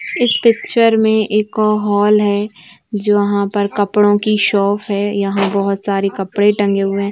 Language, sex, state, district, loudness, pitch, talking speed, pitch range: Hindi, female, Chhattisgarh, Bilaspur, -15 LUFS, 205 Hz, 170 wpm, 200-210 Hz